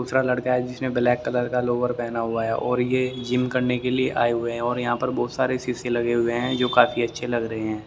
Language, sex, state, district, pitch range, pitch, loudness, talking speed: Hindi, male, Haryana, Jhajjar, 120-125 Hz, 125 Hz, -23 LUFS, 265 wpm